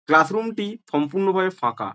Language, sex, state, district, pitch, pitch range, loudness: Bengali, male, West Bengal, Jhargram, 190 Hz, 160-215 Hz, -22 LUFS